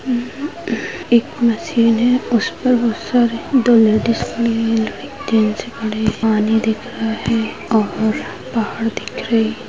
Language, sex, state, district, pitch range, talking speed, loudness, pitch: Hindi, female, Chhattisgarh, Kabirdham, 220-240 Hz, 150 wpm, -17 LUFS, 230 Hz